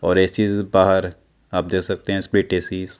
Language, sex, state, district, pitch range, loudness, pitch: Hindi, male, Chandigarh, Chandigarh, 90-100 Hz, -20 LUFS, 95 Hz